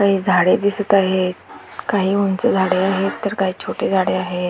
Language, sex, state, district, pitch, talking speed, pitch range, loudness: Marathi, female, Maharashtra, Dhule, 190 Hz, 175 wpm, 185-200 Hz, -18 LUFS